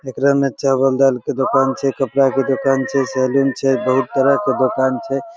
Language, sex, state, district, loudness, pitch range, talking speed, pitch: Maithili, male, Bihar, Begusarai, -17 LUFS, 130-135 Hz, 200 wpm, 135 Hz